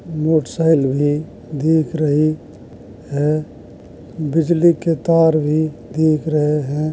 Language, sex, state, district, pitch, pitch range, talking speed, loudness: Hindi, male, Uttar Pradesh, Jalaun, 155 Hz, 150-160 Hz, 105 wpm, -17 LUFS